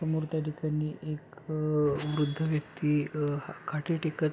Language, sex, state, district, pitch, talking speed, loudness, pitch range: Marathi, male, Maharashtra, Pune, 155 Hz, 140 wpm, -31 LUFS, 150-155 Hz